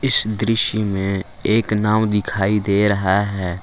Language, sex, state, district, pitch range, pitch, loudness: Hindi, male, Jharkhand, Palamu, 95-110 Hz, 105 Hz, -18 LUFS